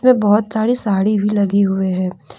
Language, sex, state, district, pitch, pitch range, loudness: Hindi, female, Jharkhand, Deoghar, 205 Hz, 195-220 Hz, -16 LUFS